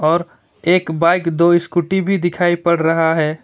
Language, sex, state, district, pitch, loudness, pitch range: Hindi, male, West Bengal, Alipurduar, 170 Hz, -16 LUFS, 165-175 Hz